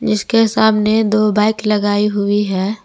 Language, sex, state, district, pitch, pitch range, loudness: Hindi, female, Jharkhand, Garhwa, 210 Hz, 205-220 Hz, -15 LUFS